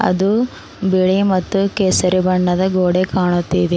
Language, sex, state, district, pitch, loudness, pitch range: Kannada, female, Karnataka, Bidar, 185 Hz, -16 LUFS, 180-190 Hz